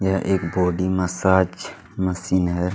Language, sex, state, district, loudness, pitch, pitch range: Hindi, male, Chhattisgarh, Kabirdham, -21 LUFS, 90 Hz, 90-95 Hz